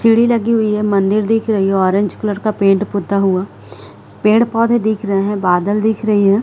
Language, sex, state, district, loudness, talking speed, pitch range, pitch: Hindi, female, Chhattisgarh, Rajnandgaon, -15 LUFS, 215 wpm, 195-220 Hz, 205 Hz